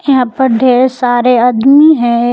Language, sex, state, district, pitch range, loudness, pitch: Hindi, female, Jharkhand, Palamu, 245-265 Hz, -9 LUFS, 250 Hz